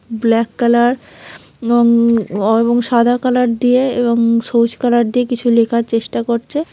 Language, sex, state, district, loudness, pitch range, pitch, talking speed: Bengali, male, West Bengal, Dakshin Dinajpur, -14 LUFS, 230-245 Hz, 235 Hz, 135 wpm